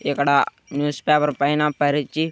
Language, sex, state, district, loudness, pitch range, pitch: Telugu, male, Andhra Pradesh, Krishna, -20 LUFS, 140-150 Hz, 145 Hz